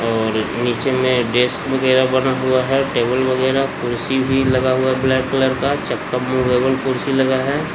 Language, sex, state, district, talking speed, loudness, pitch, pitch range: Hindi, male, Bihar, Patna, 145 wpm, -17 LUFS, 130 Hz, 125-130 Hz